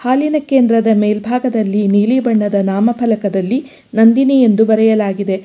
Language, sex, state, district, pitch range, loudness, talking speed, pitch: Kannada, female, Karnataka, Bangalore, 205-250 Hz, -13 LUFS, 100 wpm, 225 Hz